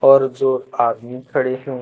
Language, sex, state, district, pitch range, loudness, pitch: Hindi, male, Jharkhand, Ranchi, 125-135 Hz, -18 LUFS, 130 Hz